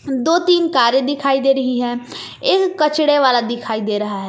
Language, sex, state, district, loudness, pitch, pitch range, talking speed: Hindi, female, Jharkhand, Palamu, -16 LUFS, 265 Hz, 240-300 Hz, 195 wpm